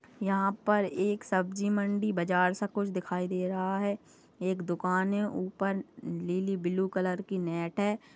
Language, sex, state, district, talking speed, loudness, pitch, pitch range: Hindi, female, Goa, North and South Goa, 160 wpm, -31 LUFS, 190 Hz, 185-205 Hz